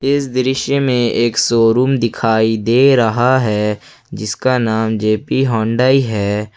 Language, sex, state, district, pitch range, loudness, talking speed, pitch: Hindi, male, Jharkhand, Ranchi, 110-130 Hz, -14 LUFS, 130 wpm, 120 Hz